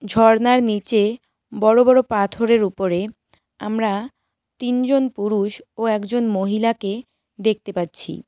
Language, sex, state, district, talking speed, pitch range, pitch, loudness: Bengali, female, West Bengal, Cooch Behar, 100 wpm, 205-235 Hz, 220 Hz, -19 LUFS